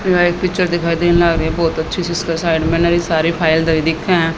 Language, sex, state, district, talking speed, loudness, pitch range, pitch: Hindi, female, Haryana, Jhajjar, 245 wpm, -15 LUFS, 165-175 Hz, 170 Hz